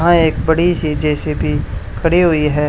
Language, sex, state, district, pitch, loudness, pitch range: Hindi, male, Haryana, Charkhi Dadri, 160 Hz, -15 LUFS, 150-170 Hz